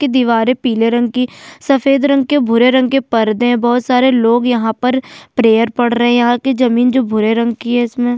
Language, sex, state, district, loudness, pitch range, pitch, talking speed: Hindi, female, Chhattisgarh, Kabirdham, -13 LUFS, 235-260 Hz, 245 Hz, 225 wpm